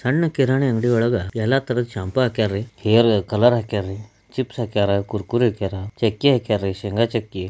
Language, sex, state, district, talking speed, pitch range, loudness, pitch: Kannada, male, Karnataka, Belgaum, 145 wpm, 100-125 Hz, -20 LUFS, 115 Hz